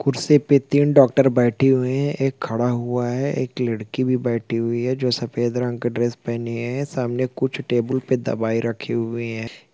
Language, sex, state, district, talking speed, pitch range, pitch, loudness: Hindi, male, Chhattisgarh, Sukma, 195 wpm, 115-130 Hz, 125 Hz, -21 LUFS